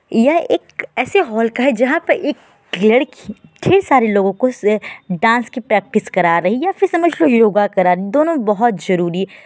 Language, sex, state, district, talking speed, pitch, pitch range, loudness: Hindi, female, Uttar Pradesh, Varanasi, 205 wpm, 230 Hz, 200-290 Hz, -15 LUFS